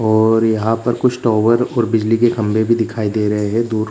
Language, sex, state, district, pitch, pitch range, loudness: Hindi, male, Bihar, Gaya, 115 Hz, 110-115 Hz, -16 LUFS